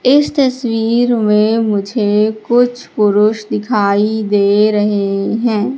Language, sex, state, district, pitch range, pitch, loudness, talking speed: Hindi, female, Madhya Pradesh, Katni, 210-235 Hz, 215 Hz, -14 LUFS, 105 wpm